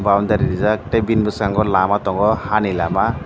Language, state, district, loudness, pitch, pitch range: Kokborok, Tripura, Dhalai, -17 LUFS, 105 Hz, 95-110 Hz